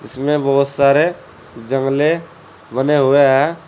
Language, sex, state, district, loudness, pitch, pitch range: Hindi, male, Uttar Pradesh, Saharanpur, -15 LUFS, 140 Hz, 135-160 Hz